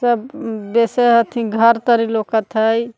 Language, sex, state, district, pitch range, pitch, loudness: Magahi, female, Jharkhand, Palamu, 220-235 Hz, 230 Hz, -16 LUFS